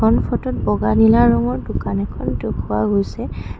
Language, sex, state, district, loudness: Assamese, female, Assam, Kamrup Metropolitan, -18 LUFS